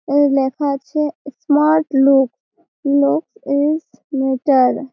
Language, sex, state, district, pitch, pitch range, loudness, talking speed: Bengali, female, West Bengal, Malda, 280 Hz, 270-300 Hz, -17 LUFS, 110 wpm